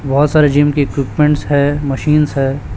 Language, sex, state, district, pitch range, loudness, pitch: Hindi, male, Chhattisgarh, Raipur, 140-150 Hz, -13 LUFS, 145 Hz